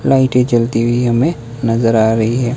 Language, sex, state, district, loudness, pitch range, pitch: Hindi, male, Himachal Pradesh, Shimla, -14 LUFS, 115-125 Hz, 120 Hz